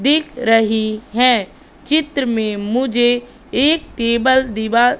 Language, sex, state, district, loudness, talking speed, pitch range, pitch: Hindi, female, Madhya Pradesh, Katni, -16 LUFS, 110 wpm, 225-265 Hz, 245 Hz